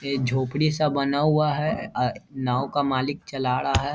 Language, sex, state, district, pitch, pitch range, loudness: Hindi, male, Bihar, Vaishali, 140 Hz, 130-150 Hz, -24 LUFS